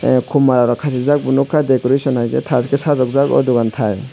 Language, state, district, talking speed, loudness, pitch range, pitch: Kokborok, Tripura, West Tripura, 205 wpm, -15 LUFS, 125-140 Hz, 130 Hz